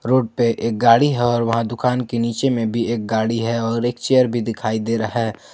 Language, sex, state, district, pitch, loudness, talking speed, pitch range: Hindi, male, Jharkhand, Ranchi, 115 Hz, -19 LUFS, 250 wpm, 115-120 Hz